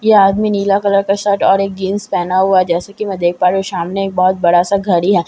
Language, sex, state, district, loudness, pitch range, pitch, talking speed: Hindi, female, Bihar, Katihar, -14 LUFS, 180-200 Hz, 195 Hz, 285 wpm